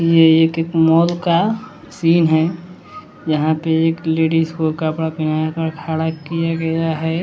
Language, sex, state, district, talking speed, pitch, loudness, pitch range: Hindi, male, Bihar, West Champaran, 150 wpm, 160 Hz, -17 LUFS, 160-165 Hz